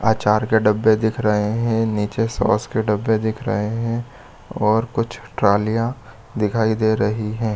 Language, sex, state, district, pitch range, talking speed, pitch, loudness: Hindi, male, Chhattisgarh, Bilaspur, 105-115 Hz, 165 wpm, 110 Hz, -20 LUFS